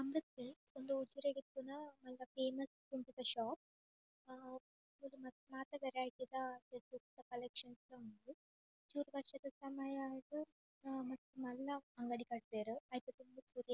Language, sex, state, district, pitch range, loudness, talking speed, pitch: Tulu, female, Karnataka, Dakshina Kannada, 250-275 Hz, -48 LUFS, 125 wpm, 260 Hz